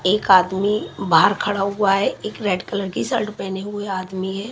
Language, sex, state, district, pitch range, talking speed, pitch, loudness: Hindi, female, Chhattisgarh, Raipur, 190-205 Hz, 200 wpm, 195 Hz, -20 LUFS